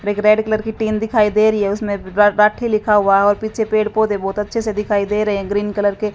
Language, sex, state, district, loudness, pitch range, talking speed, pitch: Hindi, female, Haryana, Jhajjar, -17 LUFS, 205-215 Hz, 265 wpm, 210 Hz